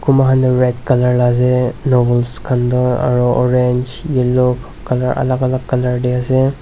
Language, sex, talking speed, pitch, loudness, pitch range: Nagamese, male, 165 wpm, 125 Hz, -15 LUFS, 125-130 Hz